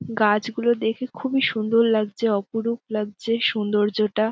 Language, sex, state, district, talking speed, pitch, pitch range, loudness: Bengali, female, West Bengal, Dakshin Dinajpur, 110 wpm, 220 Hz, 215-230 Hz, -22 LUFS